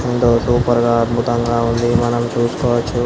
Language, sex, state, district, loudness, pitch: Telugu, male, Andhra Pradesh, Anantapur, -16 LUFS, 120 Hz